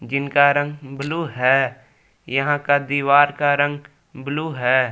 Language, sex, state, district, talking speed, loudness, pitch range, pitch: Hindi, male, Jharkhand, Palamu, 135 wpm, -19 LUFS, 135-145 Hz, 145 Hz